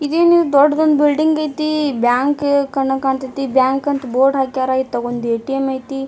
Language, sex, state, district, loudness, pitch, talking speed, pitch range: Kannada, female, Karnataka, Dharwad, -16 LUFS, 270 Hz, 140 wpm, 265-295 Hz